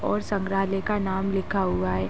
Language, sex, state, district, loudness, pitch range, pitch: Hindi, female, Uttar Pradesh, Gorakhpur, -26 LUFS, 190-195 Hz, 195 Hz